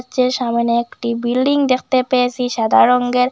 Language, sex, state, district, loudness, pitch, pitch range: Bengali, female, Assam, Hailakandi, -16 LUFS, 250 Hz, 235-255 Hz